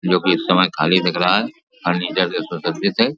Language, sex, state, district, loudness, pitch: Hindi, male, Uttar Pradesh, Jalaun, -18 LUFS, 90 Hz